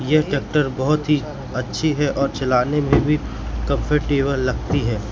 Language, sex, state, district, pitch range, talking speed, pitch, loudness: Hindi, male, Madhya Pradesh, Katni, 130-150 Hz, 150 wpm, 140 Hz, -20 LUFS